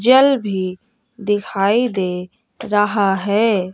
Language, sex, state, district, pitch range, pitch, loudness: Hindi, female, Bihar, West Champaran, 195-230 Hz, 205 Hz, -18 LUFS